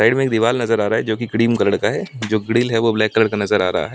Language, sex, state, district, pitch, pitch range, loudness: Hindi, male, Delhi, New Delhi, 115 Hz, 110-115 Hz, -18 LUFS